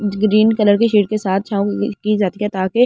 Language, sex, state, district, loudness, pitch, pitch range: Hindi, female, Delhi, New Delhi, -16 LUFS, 210 Hz, 200-215 Hz